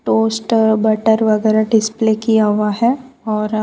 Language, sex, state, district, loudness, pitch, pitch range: Hindi, female, Gujarat, Valsad, -15 LUFS, 220 Hz, 215-225 Hz